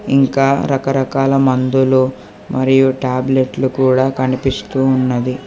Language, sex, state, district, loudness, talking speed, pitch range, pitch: Telugu, male, Telangana, Hyderabad, -15 LUFS, 90 wpm, 130-135 Hz, 130 Hz